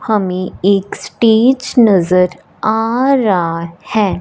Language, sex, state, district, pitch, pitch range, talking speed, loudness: Hindi, male, Punjab, Fazilka, 210 Hz, 185-225 Hz, 100 wpm, -13 LUFS